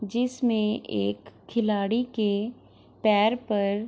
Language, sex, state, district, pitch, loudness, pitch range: Hindi, female, Bihar, Gopalganj, 215 Hz, -26 LUFS, 200-230 Hz